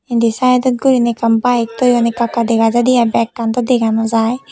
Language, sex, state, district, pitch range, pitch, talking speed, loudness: Chakma, female, Tripura, West Tripura, 230-250 Hz, 235 Hz, 210 wpm, -14 LUFS